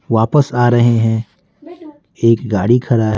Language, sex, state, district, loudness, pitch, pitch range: Hindi, male, Bihar, Patna, -14 LUFS, 120 Hz, 115-140 Hz